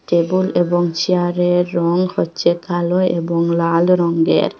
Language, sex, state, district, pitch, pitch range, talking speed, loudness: Bengali, female, Assam, Hailakandi, 175 Hz, 170-180 Hz, 115 wpm, -16 LUFS